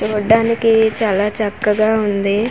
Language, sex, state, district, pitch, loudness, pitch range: Telugu, female, Andhra Pradesh, Manyam, 215 Hz, -15 LUFS, 210-225 Hz